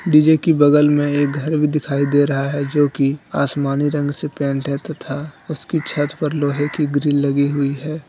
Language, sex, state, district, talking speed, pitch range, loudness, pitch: Hindi, male, Jharkhand, Deoghar, 195 wpm, 140-150 Hz, -18 LUFS, 145 Hz